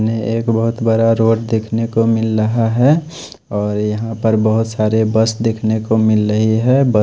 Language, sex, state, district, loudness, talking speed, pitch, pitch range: Hindi, male, Odisha, Khordha, -15 LUFS, 195 wpm, 110 Hz, 110-115 Hz